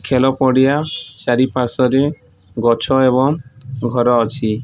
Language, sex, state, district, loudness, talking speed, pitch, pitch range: Odia, male, Odisha, Nuapada, -16 LUFS, 105 wpm, 130 Hz, 120-135 Hz